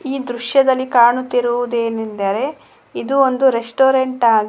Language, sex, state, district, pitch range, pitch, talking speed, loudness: Kannada, female, Karnataka, Koppal, 235-265 Hz, 245 Hz, 95 wpm, -16 LUFS